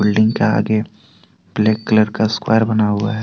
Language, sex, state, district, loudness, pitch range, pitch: Hindi, male, Jharkhand, Deoghar, -16 LUFS, 105-110 Hz, 110 Hz